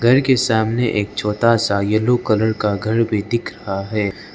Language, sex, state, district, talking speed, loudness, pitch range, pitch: Hindi, male, Arunachal Pradesh, Lower Dibang Valley, 195 wpm, -18 LUFS, 105-115 Hz, 110 Hz